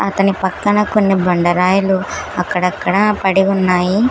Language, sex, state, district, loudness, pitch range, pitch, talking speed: Telugu, female, Telangana, Hyderabad, -15 LUFS, 180-195 Hz, 190 Hz, 100 wpm